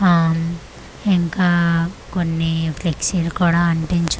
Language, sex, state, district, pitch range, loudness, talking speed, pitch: Telugu, female, Andhra Pradesh, Manyam, 165-175 Hz, -19 LUFS, 100 wpm, 170 Hz